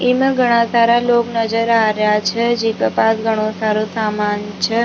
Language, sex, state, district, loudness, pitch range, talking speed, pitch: Rajasthani, female, Rajasthan, Nagaur, -16 LUFS, 215-235 Hz, 175 wpm, 225 Hz